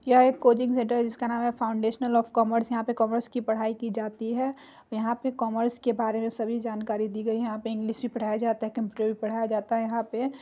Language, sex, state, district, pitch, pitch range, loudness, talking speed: Hindi, female, Bihar, Muzaffarpur, 230 Hz, 225-240 Hz, -27 LUFS, 260 wpm